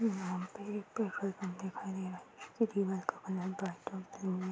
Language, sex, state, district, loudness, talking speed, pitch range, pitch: Hindi, female, Uttar Pradesh, Hamirpur, -39 LUFS, 135 wpm, 185-205 Hz, 190 Hz